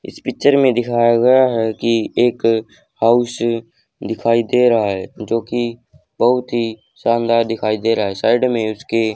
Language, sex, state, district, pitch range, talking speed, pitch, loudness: Hindi, male, Haryana, Charkhi Dadri, 115-120 Hz, 150 wpm, 115 Hz, -17 LUFS